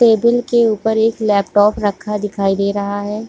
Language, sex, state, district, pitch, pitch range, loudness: Hindi, female, Jharkhand, Sahebganj, 210 Hz, 205-225 Hz, -16 LUFS